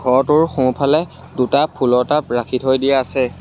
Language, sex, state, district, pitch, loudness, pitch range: Assamese, male, Assam, Sonitpur, 130 Hz, -16 LUFS, 125-145 Hz